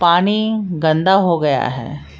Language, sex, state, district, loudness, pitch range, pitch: Hindi, female, Jharkhand, Palamu, -16 LUFS, 155-195 Hz, 170 Hz